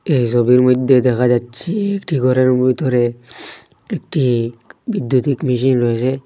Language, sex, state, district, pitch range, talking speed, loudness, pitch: Bengali, male, Assam, Hailakandi, 120-130 Hz, 115 wpm, -16 LUFS, 125 Hz